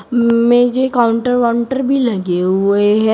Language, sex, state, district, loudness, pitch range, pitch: Hindi, female, Uttar Pradesh, Shamli, -14 LUFS, 210-245 Hz, 235 Hz